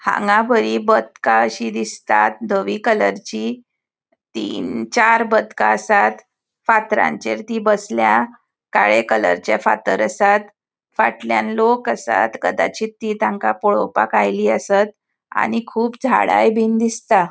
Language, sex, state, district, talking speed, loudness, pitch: Konkani, female, Goa, North and South Goa, 110 wpm, -17 LUFS, 215 Hz